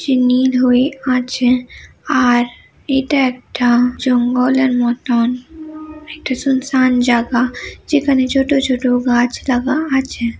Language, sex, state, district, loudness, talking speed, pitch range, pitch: Bengali, female, West Bengal, Dakshin Dinajpur, -15 LUFS, 90 wpm, 245-270 Hz, 255 Hz